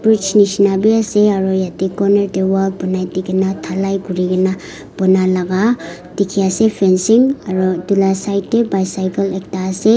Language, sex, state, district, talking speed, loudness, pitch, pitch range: Nagamese, female, Nagaland, Kohima, 155 wpm, -15 LUFS, 190 Hz, 185-200 Hz